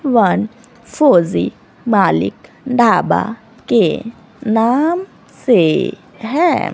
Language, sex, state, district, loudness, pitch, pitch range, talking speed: Hindi, female, Haryana, Rohtak, -15 LUFS, 235 Hz, 225-265 Hz, 70 wpm